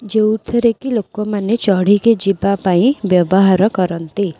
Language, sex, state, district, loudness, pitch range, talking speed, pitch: Odia, female, Odisha, Khordha, -15 LUFS, 190-220 Hz, 110 wpm, 205 Hz